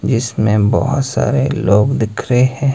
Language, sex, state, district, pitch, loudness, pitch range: Hindi, male, Himachal Pradesh, Shimla, 125 Hz, -15 LUFS, 105-135 Hz